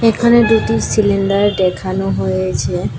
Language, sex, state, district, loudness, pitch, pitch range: Bengali, female, Tripura, West Tripura, -15 LUFS, 195 Hz, 180-220 Hz